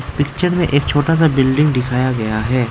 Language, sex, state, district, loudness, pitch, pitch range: Hindi, male, Arunachal Pradesh, Lower Dibang Valley, -16 LUFS, 140 Hz, 125-150 Hz